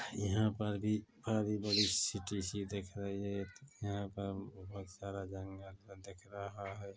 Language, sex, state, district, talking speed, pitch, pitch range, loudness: Hindi, male, Chhattisgarh, Korba, 165 wpm, 100 Hz, 100-105 Hz, -39 LUFS